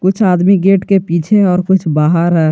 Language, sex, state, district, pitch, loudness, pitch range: Hindi, male, Jharkhand, Garhwa, 185 Hz, -11 LUFS, 170-195 Hz